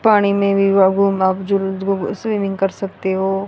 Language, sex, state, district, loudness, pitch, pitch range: Hindi, female, Haryana, Rohtak, -17 LUFS, 195 Hz, 190-200 Hz